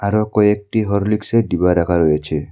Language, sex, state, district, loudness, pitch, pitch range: Bengali, male, Assam, Hailakandi, -17 LUFS, 100 Hz, 85-105 Hz